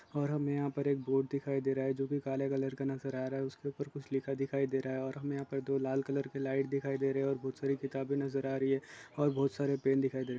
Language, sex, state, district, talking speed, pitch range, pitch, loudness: Hindi, male, Goa, North and South Goa, 325 wpm, 135-140 Hz, 135 Hz, -35 LUFS